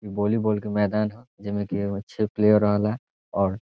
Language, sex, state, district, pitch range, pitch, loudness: Bhojpuri, male, Bihar, Saran, 100-105 Hz, 105 Hz, -24 LUFS